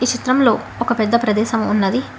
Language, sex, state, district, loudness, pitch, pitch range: Telugu, female, Telangana, Hyderabad, -17 LUFS, 235 Hz, 215-250 Hz